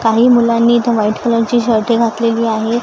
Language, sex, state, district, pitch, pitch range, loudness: Marathi, female, Maharashtra, Gondia, 230 Hz, 225-235 Hz, -13 LUFS